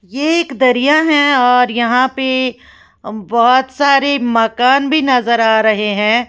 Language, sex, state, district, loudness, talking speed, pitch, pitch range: Hindi, female, Uttar Pradesh, Lalitpur, -13 LUFS, 145 wpm, 255 Hz, 235-275 Hz